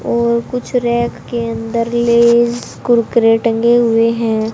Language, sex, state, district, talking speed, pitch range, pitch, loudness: Hindi, female, Haryana, Jhajjar, 130 wpm, 230-235 Hz, 235 Hz, -14 LUFS